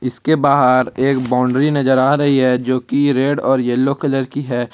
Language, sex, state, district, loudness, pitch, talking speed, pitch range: Hindi, male, Jharkhand, Ranchi, -15 LUFS, 130 Hz, 200 wpm, 125-140 Hz